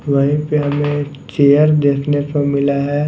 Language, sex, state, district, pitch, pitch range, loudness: Hindi, male, Chhattisgarh, Raipur, 145 Hz, 140-145 Hz, -15 LUFS